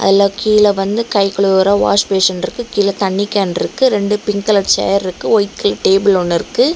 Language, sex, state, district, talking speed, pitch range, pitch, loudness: Tamil, female, Tamil Nadu, Kanyakumari, 170 wpm, 195-210 Hz, 200 Hz, -14 LUFS